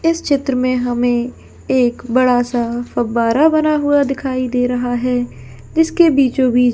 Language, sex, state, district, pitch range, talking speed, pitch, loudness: Hindi, female, Jharkhand, Jamtara, 245-285 Hz, 145 wpm, 255 Hz, -16 LUFS